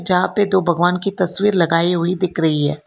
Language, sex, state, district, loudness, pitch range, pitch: Hindi, female, Karnataka, Bangalore, -17 LUFS, 170-185 Hz, 175 Hz